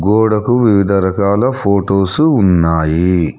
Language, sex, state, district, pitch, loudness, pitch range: Telugu, male, Telangana, Hyderabad, 100 Hz, -13 LUFS, 90-110 Hz